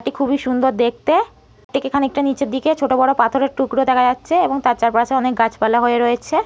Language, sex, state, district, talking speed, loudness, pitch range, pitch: Bengali, female, West Bengal, North 24 Parganas, 205 wpm, -17 LUFS, 240-275 Hz, 265 Hz